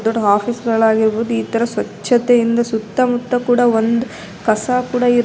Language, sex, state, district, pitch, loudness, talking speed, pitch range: Kannada, female, Karnataka, Raichur, 230 Hz, -16 LUFS, 125 wpm, 220-245 Hz